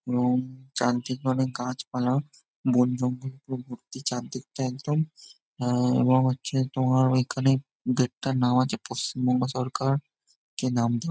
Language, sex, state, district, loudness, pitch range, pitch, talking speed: Bengali, male, West Bengal, Jhargram, -27 LUFS, 125-130 Hz, 130 Hz, 130 wpm